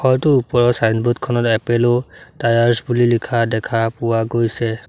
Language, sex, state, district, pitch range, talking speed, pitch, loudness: Assamese, male, Assam, Sonitpur, 115-120 Hz, 135 wpm, 120 Hz, -17 LUFS